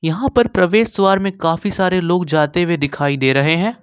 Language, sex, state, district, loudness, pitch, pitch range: Hindi, male, Jharkhand, Ranchi, -16 LUFS, 180 Hz, 160-200 Hz